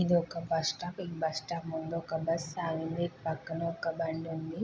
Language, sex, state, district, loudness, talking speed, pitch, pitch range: Telugu, female, Andhra Pradesh, Guntur, -34 LUFS, 130 wpm, 165 Hz, 160-170 Hz